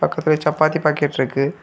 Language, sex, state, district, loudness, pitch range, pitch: Tamil, male, Tamil Nadu, Kanyakumari, -19 LUFS, 140-155 Hz, 150 Hz